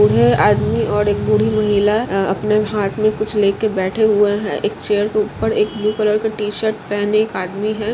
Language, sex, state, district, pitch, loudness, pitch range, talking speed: Hindi, female, Andhra Pradesh, Guntur, 210 Hz, -17 LUFS, 195-215 Hz, 70 wpm